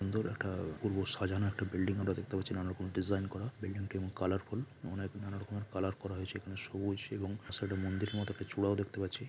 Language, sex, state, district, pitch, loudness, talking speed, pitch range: Bengali, male, West Bengal, Dakshin Dinajpur, 100 Hz, -38 LUFS, 225 wpm, 95-105 Hz